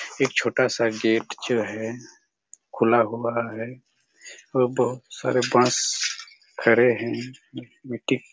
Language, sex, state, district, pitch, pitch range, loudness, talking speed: Hindi, male, Chhattisgarh, Raigarh, 120 Hz, 115-125 Hz, -23 LUFS, 115 wpm